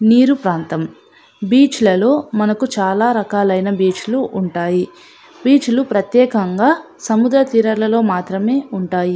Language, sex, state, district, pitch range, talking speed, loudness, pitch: Telugu, female, Andhra Pradesh, Anantapur, 190-260 Hz, 100 wpm, -15 LUFS, 220 Hz